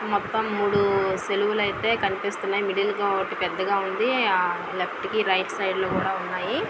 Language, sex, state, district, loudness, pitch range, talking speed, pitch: Telugu, female, Andhra Pradesh, Visakhapatnam, -24 LUFS, 195-210 Hz, 145 wpm, 200 Hz